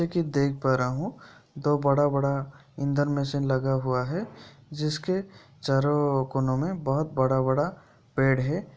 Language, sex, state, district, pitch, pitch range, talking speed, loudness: Hindi, male, Bihar, Kishanganj, 140 Hz, 130-150 Hz, 145 wpm, -26 LUFS